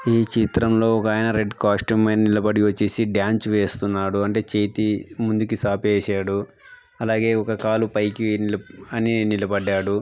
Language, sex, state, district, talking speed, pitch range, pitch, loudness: Telugu, male, Andhra Pradesh, Anantapur, 130 wpm, 105-110 Hz, 110 Hz, -21 LUFS